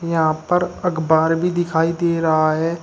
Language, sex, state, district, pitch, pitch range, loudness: Hindi, male, Uttar Pradesh, Shamli, 165 Hz, 160-175 Hz, -18 LUFS